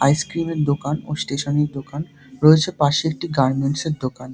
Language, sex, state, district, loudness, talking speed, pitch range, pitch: Bengali, male, West Bengal, Dakshin Dinajpur, -20 LUFS, 220 wpm, 140-155 Hz, 145 Hz